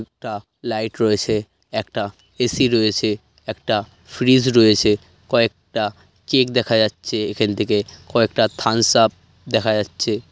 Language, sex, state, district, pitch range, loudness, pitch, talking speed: Bengali, male, West Bengal, North 24 Parganas, 100-115 Hz, -19 LUFS, 110 Hz, 120 wpm